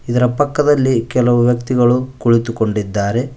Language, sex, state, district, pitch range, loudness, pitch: Kannada, male, Karnataka, Koppal, 115-130 Hz, -15 LUFS, 120 Hz